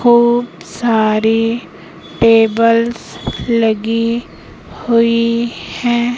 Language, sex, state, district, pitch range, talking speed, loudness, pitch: Hindi, female, Madhya Pradesh, Katni, 225-235 Hz, 60 wpm, -14 LUFS, 230 Hz